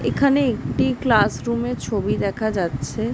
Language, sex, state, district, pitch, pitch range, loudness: Bengali, female, West Bengal, Jhargram, 230 Hz, 200-245 Hz, -21 LUFS